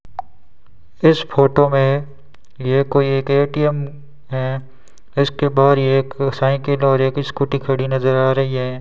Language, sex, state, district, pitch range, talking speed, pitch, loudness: Hindi, male, Rajasthan, Bikaner, 130-140 Hz, 135 wpm, 135 Hz, -17 LUFS